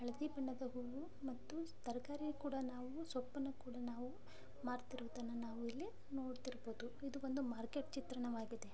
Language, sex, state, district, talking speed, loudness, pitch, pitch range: Kannada, female, Karnataka, Dharwad, 125 wpm, -48 LUFS, 255 Hz, 245-275 Hz